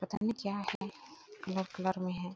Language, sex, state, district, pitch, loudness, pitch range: Hindi, female, Chhattisgarh, Bilaspur, 190 Hz, -37 LUFS, 185-205 Hz